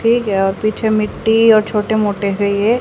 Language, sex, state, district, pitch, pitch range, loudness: Hindi, female, Haryana, Jhajjar, 215 Hz, 205-225 Hz, -15 LUFS